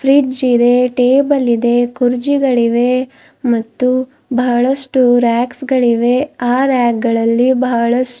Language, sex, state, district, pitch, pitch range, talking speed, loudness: Kannada, female, Karnataka, Bidar, 250 Hz, 240-260 Hz, 100 wpm, -13 LUFS